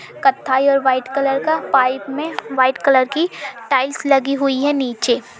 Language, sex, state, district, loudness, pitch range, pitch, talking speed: Hindi, female, Uttar Pradesh, Budaun, -17 LUFS, 260-280 Hz, 270 Hz, 165 wpm